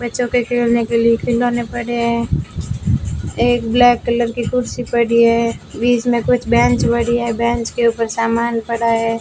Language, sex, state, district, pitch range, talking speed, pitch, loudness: Hindi, female, Rajasthan, Bikaner, 230-240 Hz, 175 wpm, 235 Hz, -16 LUFS